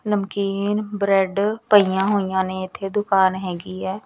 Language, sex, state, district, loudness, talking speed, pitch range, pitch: Punjabi, female, Punjab, Kapurthala, -21 LUFS, 135 wpm, 190-205 Hz, 195 Hz